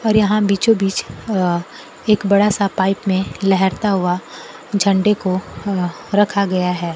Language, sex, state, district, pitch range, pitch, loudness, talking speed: Hindi, female, Bihar, Kaimur, 185-205 Hz, 195 Hz, -17 LUFS, 145 wpm